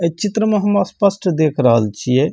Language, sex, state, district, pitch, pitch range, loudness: Maithili, male, Bihar, Samastipur, 170 Hz, 135-205 Hz, -16 LUFS